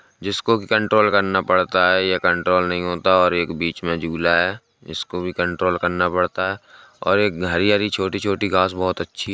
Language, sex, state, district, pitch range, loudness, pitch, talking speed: Hindi, male, Uttar Pradesh, Jalaun, 90-100 Hz, -19 LUFS, 90 Hz, 190 wpm